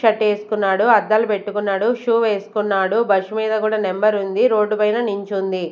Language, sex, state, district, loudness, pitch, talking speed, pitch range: Telugu, female, Andhra Pradesh, Sri Satya Sai, -18 LUFS, 210 Hz, 145 wpm, 195-220 Hz